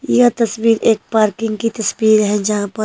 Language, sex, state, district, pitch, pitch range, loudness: Hindi, female, Himachal Pradesh, Shimla, 220 Hz, 210-230 Hz, -15 LUFS